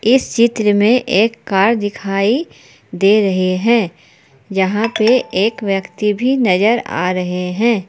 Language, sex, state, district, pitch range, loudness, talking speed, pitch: Hindi, female, Jharkhand, Palamu, 190-230 Hz, -15 LUFS, 135 wpm, 210 Hz